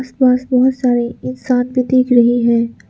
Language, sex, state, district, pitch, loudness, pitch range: Hindi, female, Arunachal Pradesh, Lower Dibang Valley, 250 Hz, -14 LUFS, 235-255 Hz